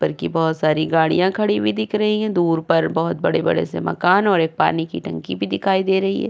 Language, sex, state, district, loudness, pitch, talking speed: Hindi, female, Uttar Pradesh, Jyotiba Phule Nagar, -19 LUFS, 165 Hz, 240 wpm